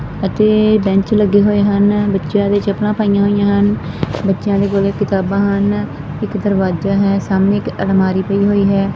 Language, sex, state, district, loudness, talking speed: Punjabi, female, Punjab, Fazilka, -15 LUFS, 165 wpm